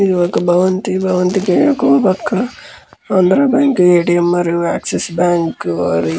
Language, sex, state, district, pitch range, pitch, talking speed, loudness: Telugu, male, Andhra Pradesh, Krishna, 170-185 Hz, 175 Hz, 105 wpm, -14 LUFS